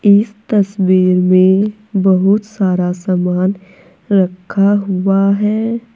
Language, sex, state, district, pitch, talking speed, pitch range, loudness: Hindi, female, Uttar Pradesh, Saharanpur, 195 Hz, 90 wpm, 185-205 Hz, -14 LUFS